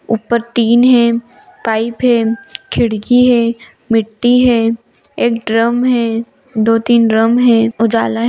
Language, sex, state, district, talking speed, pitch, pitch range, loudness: Hindi, female, Bihar, Gaya, 130 wpm, 230 Hz, 225-240 Hz, -13 LUFS